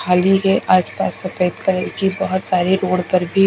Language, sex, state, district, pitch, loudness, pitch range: Hindi, female, Odisha, Khordha, 185 Hz, -17 LUFS, 180-195 Hz